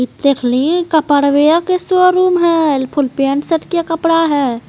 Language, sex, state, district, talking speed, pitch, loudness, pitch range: Hindi, female, Bihar, Jamui, 140 wpm, 315 Hz, -13 LUFS, 280-340 Hz